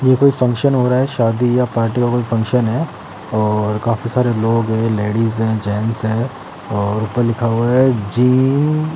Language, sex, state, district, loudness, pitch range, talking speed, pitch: Hindi, male, Haryana, Jhajjar, -16 LUFS, 110-125 Hz, 195 wpm, 115 Hz